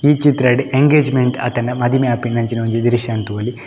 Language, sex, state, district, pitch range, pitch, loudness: Tulu, male, Karnataka, Dakshina Kannada, 120-135 Hz, 120 Hz, -16 LUFS